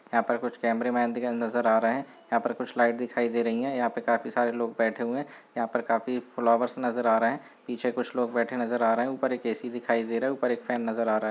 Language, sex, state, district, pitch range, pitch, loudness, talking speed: Hindi, male, Chhattisgarh, Balrampur, 115-125 Hz, 120 Hz, -28 LUFS, 295 wpm